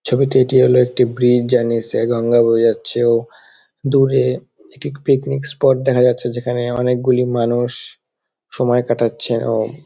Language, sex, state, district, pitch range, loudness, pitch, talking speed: Bengali, male, West Bengal, Dakshin Dinajpur, 120-130 Hz, -16 LUFS, 125 Hz, 165 wpm